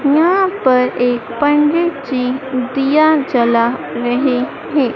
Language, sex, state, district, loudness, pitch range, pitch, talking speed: Hindi, female, Madhya Pradesh, Dhar, -15 LUFS, 250-300 Hz, 265 Hz, 110 wpm